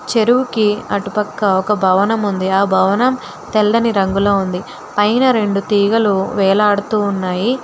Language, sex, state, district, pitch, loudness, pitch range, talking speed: Telugu, female, Telangana, Hyderabad, 205 Hz, -15 LUFS, 195-225 Hz, 120 wpm